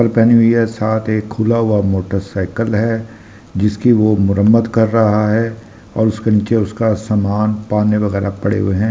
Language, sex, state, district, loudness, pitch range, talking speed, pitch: Hindi, male, Delhi, New Delhi, -15 LUFS, 105-115 Hz, 175 wpm, 110 Hz